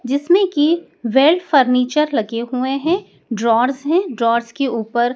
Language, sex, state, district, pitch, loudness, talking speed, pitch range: Hindi, male, Madhya Pradesh, Dhar, 265 Hz, -17 LUFS, 150 wpm, 235-315 Hz